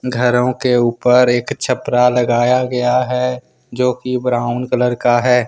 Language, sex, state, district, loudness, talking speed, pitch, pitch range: Hindi, male, Jharkhand, Ranchi, -15 LUFS, 155 wpm, 125 Hz, 120-125 Hz